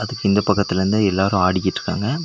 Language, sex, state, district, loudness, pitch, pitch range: Tamil, male, Tamil Nadu, Nilgiris, -19 LUFS, 100 Hz, 95-105 Hz